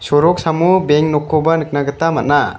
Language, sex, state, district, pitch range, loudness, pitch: Garo, male, Meghalaya, West Garo Hills, 145-165 Hz, -14 LUFS, 155 Hz